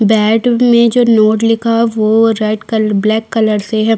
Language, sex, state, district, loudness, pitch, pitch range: Hindi, female, Chhattisgarh, Kabirdham, -11 LUFS, 220 Hz, 215-230 Hz